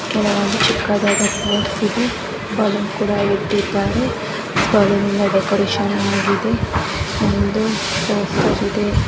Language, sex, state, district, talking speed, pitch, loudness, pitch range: Kannada, female, Karnataka, Bijapur, 80 wpm, 205 Hz, -18 LUFS, 200-210 Hz